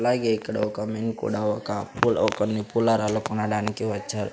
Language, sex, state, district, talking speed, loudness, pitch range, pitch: Telugu, male, Andhra Pradesh, Sri Satya Sai, 165 wpm, -25 LUFS, 105-115 Hz, 110 Hz